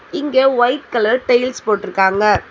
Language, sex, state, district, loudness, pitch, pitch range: Tamil, female, Tamil Nadu, Chennai, -15 LUFS, 245 Hz, 210-265 Hz